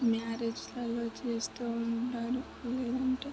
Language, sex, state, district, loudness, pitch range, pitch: Telugu, male, Andhra Pradesh, Chittoor, -35 LUFS, 230-250 Hz, 235 Hz